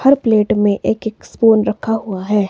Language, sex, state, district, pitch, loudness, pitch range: Hindi, female, Himachal Pradesh, Shimla, 220 Hz, -15 LUFS, 205-225 Hz